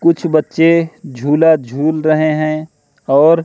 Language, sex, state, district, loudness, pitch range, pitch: Hindi, male, Madhya Pradesh, Katni, -14 LUFS, 150-160 Hz, 155 Hz